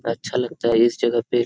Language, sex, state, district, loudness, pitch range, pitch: Hindi, male, Jharkhand, Sahebganj, -20 LUFS, 115-125 Hz, 120 Hz